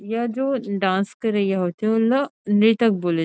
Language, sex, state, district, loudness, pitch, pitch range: Chhattisgarhi, female, Chhattisgarh, Rajnandgaon, -21 LUFS, 220 Hz, 195-235 Hz